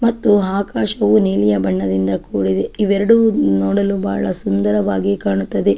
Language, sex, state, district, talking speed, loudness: Kannada, female, Karnataka, Chamarajanagar, 105 wpm, -16 LUFS